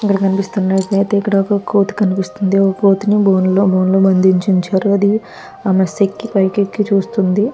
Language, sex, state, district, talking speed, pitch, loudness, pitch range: Telugu, female, Andhra Pradesh, Guntur, 150 wpm, 195 Hz, -14 LUFS, 190-205 Hz